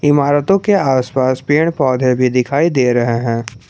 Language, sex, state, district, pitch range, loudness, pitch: Hindi, male, Jharkhand, Garhwa, 125-145 Hz, -14 LUFS, 130 Hz